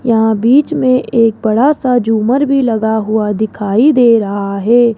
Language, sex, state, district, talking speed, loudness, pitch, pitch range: Hindi, female, Rajasthan, Jaipur, 170 wpm, -12 LUFS, 230 Hz, 220-255 Hz